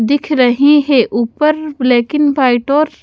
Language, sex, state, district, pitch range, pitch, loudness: Hindi, female, Haryana, Charkhi Dadri, 250-300 Hz, 280 Hz, -12 LUFS